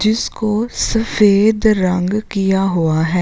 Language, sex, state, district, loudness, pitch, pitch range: Hindi, female, Uttarakhand, Uttarkashi, -15 LUFS, 205 Hz, 185-215 Hz